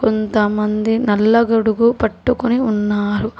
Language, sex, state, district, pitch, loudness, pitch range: Telugu, female, Telangana, Hyderabad, 220 Hz, -16 LUFS, 210-230 Hz